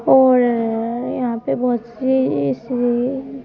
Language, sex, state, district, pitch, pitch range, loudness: Hindi, female, Madhya Pradesh, Bhopal, 245 Hz, 230-260 Hz, -18 LUFS